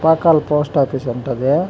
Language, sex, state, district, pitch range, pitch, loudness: Telugu, male, Andhra Pradesh, Chittoor, 135-160 Hz, 150 Hz, -17 LUFS